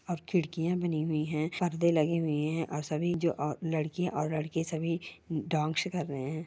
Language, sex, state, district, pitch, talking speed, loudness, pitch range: Hindi, female, Rajasthan, Churu, 160 Hz, 175 wpm, -32 LUFS, 155-170 Hz